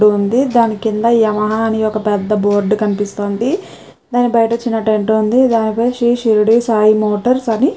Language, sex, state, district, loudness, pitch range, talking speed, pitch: Telugu, female, Telangana, Nalgonda, -14 LUFS, 210-235 Hz, 155 wpm, 220 Hz